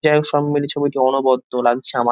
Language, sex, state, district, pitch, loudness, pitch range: Bengali, male, West Bengal, North 24 Parganas, 135 Hz, -18 LUFS, 125-145 Hz